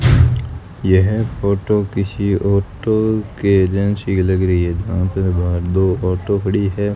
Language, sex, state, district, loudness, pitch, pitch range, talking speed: Hindi, male, Rajasthan, Bikaner, -17 LUFS, 100 Hz, 95-105 Hz, 140 wpm